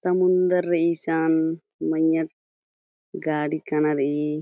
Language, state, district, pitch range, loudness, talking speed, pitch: Kurukh, Chhattisgarh, Jashpur, 150-170 Hz, -23 LUFS, 95 wpm, 160 Hz